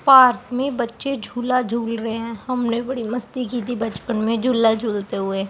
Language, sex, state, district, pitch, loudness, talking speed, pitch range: Hindi, female, Bihar, Supaul, 235 Hz, -21 LUFS, 185 wpm, 225-250 Hz